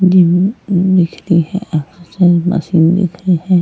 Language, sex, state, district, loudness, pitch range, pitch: Hindi, female, Goa, North and South Goa, -13 LUFS, 170-185 Hz, 180 Hz